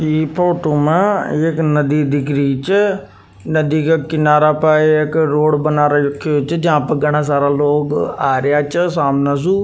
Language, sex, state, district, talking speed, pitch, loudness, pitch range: Rajasthani, male, Rajasthan, Nagaur, 170 wpm, 150 Hz, -15 LUFS, 145-160 Hz